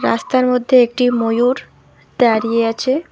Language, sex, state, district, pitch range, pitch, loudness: Bengali, female, West Bengal, Alipurduar, 230-255 Hz, 245 Hz, -15 LUFS